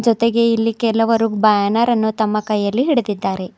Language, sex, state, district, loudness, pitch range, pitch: Kannada, female, Karnataka, Bidar, -17 LUFS, 210-230 Hz, 225 Hz